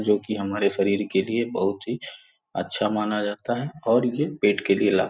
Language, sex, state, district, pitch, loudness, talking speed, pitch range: Hindi, male, Uttar Pradesh, Gorakhpur, 105 Hz, -24 LUFS, 200 wpm, 100-115 Hz